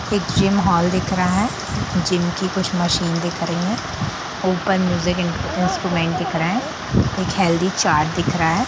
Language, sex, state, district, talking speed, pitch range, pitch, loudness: Hindi, female, Bihar, Sitamarhi, 175 wpm, 170-190 Hz, 180 Hz, -20 LUFS